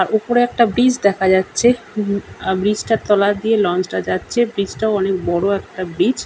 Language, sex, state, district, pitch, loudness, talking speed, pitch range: Bengali, male, West Bengal, Kolkata, 200 Hz, -17 LUFS, 210 wpm, 190-225 Hz